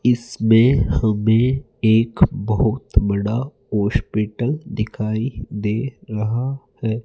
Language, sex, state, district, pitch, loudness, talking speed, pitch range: Hindi, male, Rajasthan, Jaipur, 110 Hz, -20 LUFS, 85 wpm, 105-125 Hz